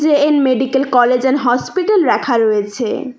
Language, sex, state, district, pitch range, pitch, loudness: Bengali, female, West Bengal, Cooch Behar, 245-290 Hz, 260 Hz, -14 LUFS